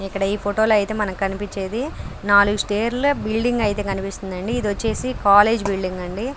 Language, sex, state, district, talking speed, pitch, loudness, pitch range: Telugu, female, Andhra Pradesh, Krishna, 160 wpm, 205 Hz, -20 LUFS, 195-225 Hz